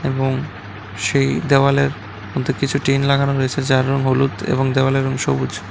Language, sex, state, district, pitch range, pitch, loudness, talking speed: Bengali, male, Tripura, West Tripura, 130-135 Hz, 135 Hz, -18 LUFS, 145 wpm